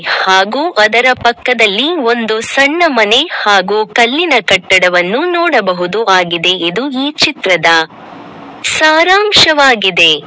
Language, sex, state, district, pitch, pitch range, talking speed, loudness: Kannada, female, Karnataka, Koppal, 225 Hz, 185-285 Hz, 90 wpm, -9 LUFS